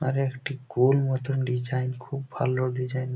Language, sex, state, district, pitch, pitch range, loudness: Bengali, male, West Bengal, Jalpaiguri, 130 Hz, 125-135 Hz, -27 LUFS